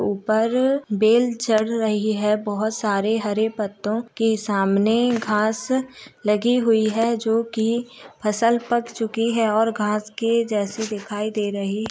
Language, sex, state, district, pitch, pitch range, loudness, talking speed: Hindi, female, Bihar, Gopalganj, 220 Hz, 210-230 Hz, -21 LUFS, 145 wpm